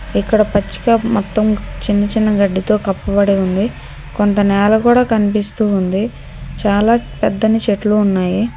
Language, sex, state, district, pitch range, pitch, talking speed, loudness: Telugu, female, Telangana, Hyderabad, 200-220 Hz, 210 Hz, 125 wpm, -15 LUFS